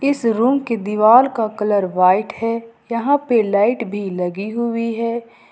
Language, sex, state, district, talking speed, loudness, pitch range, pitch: Hindi, female, Jharkhand, Ranchi, 165 wpm, -18 LUFS, 210-235 Hz, 230 Hz